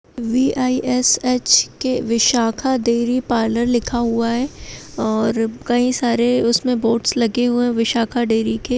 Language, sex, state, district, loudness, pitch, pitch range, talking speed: Hindi, female, Bihar, Madhepura, -18 LUFS, 240 Hz, 230-250 Hz, 150 wpm